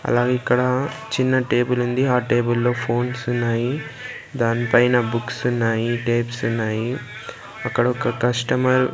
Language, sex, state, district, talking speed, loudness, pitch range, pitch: Telugu, male, Andhra Pradesh, Sri Satya Sai, 135 wpm, -21 LUFS, 120-125 Hz, 120 Hz